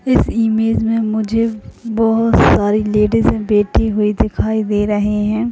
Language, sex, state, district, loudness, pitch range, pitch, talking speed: Hindi, female, Bihar, Jahanabad, -15 LUFS, 210-225 Hz, 220 Hz, 140 wpm